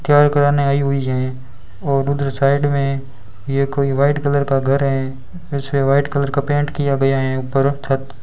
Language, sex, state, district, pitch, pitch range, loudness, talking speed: Hindi, male, Rajasthan, Bikaner, 140 Hz, 135-140 Hz, -18 LUFS, 195 wpm